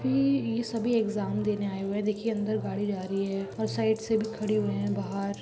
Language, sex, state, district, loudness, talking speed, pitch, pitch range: Hindi, female, Goa, North and South Goa, -29 LUFS, 245 wpm, 210 Hz, 195-225 Hz